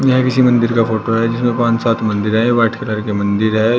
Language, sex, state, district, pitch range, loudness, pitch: Hindi, male, Uttar Pradesh, Shamli, 110-120 Hz, -15 LUFS, 115 Hz